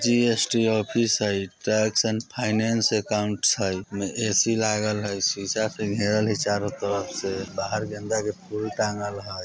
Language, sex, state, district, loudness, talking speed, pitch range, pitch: Bajjika, male, Bihar, Vaishali, -24 LUFS, 165 wpm, 100-110 Hz, 105 Hz